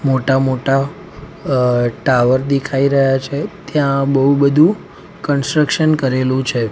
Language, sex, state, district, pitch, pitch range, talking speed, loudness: Gujarati, male, Gujarat, Gandhinagar, 135 Hz, 130-145 Hz, 115 wpm, -15 LUFS